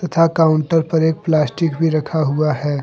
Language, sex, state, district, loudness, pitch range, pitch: Hindi, male, Jharkhand, Deoghar, -17 LUFS, 155-165 Hz, 160 Hz